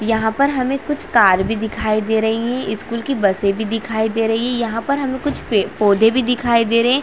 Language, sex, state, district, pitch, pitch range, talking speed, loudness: Hindi, female, Chhattisgarh, Raigarh, 225 Hz, 220-250 Hz, 245 wpm, -18 LUFS